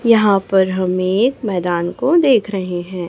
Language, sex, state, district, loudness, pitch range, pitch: Hindi, female, Chhattisgarh, Raipur, -16 LUFS, 180-220 Hz, 190 Hz